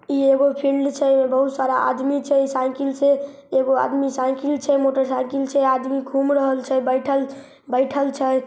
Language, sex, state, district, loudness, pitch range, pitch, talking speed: Maithili, female, Bihar, Samastipur, -20 LUFS, 265-280 Hz, 275 Hz, 175 wpm